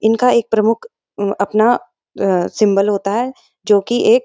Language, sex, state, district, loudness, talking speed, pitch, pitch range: Hindi, female, Uttarakhand, Uttarkashi, -16 LUFS, 155 wpm, 220 Hz, 200-245 Hz